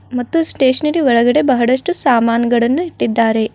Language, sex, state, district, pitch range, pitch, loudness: Kannada, female, Karnataka, Bidar, 235-300 Hz, 255 Hz, -14 LUFS